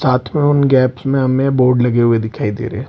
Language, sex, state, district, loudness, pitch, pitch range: Hindi, male, Bihar, Lakhisarai, -14 LUFS, 125 Hz, 120-135 Hz